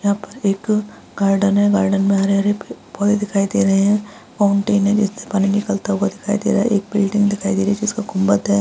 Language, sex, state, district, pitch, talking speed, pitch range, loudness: Hindi, female, Bihar, Araria, 200 Hz, 230 wpm, 195-205 Hz, -18 LUFS